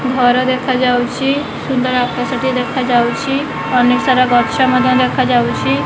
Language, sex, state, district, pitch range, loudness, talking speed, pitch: Odia, female, Odisha, Khordha, 245-260 Hz, -14 LUFS, 110 wpm, 255 Hz